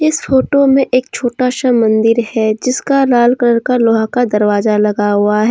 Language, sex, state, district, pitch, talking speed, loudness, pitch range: Hindi, female, Jharkhand, Deoghar, 240 Hz, 195 wpm, -12 LUFS, 220-255 Hz